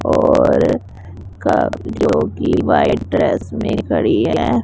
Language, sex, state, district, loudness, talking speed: Hindi, female, Punjab, Pathankot, -16 LUFS, 115 wpm